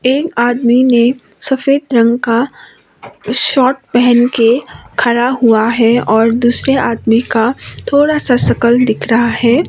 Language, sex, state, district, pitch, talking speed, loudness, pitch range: Hindi, female, Sikkim, Gangtok, 240 Hz, 135 wpm, -12 LUFS, 230-260 Hz